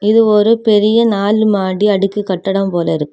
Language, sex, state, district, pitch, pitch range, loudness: Tamil, female, Tamil Nadu, Kanyakumari, 205 Hz, 190-215 Hz, -13 LUFS